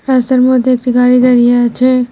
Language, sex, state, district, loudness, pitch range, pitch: Bengali, female, West Bengal, Cooch Behar, -10 LUFS, 245-255 Hz, 250 Hz